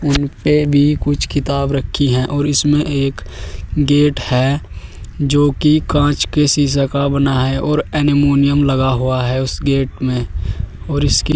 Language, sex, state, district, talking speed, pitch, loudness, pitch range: Hindi, male, Uttar Pradesh, Saharanpur, 160 wpm, 140 Hz, -15 LUFS, 130-145 Hz